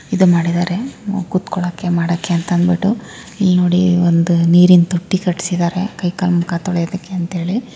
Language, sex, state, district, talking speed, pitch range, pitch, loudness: Kannada, female, Karnataka, Raichur, 130 wpm, 175-185 Hz, 180 Hz, -16 LUFS